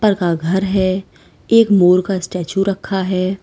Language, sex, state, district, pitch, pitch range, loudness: Hindi, female, Uttar Pradesh, Lalitpur, 190 Hz, 185-195 Hz, -16 LUFS